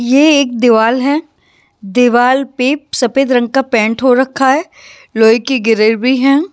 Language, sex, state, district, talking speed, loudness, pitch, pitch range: Hindi, female, Maharashtra, Washim, 155 wpm, -12 LUFS, 255 Hz, 235-270 Hz